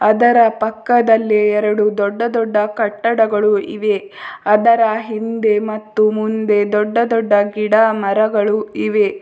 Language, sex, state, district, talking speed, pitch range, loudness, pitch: Kannada, female, Karnataka, Bidar, 105 wpm, 210-225 Hz, -15 LUFS, 215 Hz